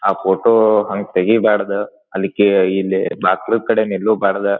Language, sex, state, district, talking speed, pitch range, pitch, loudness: Kannada, male, Karnataka, Dharwad, 115 wpm, 95-110 Hz, 100 Hz, -16 LUFS